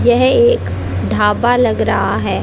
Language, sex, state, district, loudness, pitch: Hindi, female, Haryana, Jhajjar, -14 LUFS, 105 Hz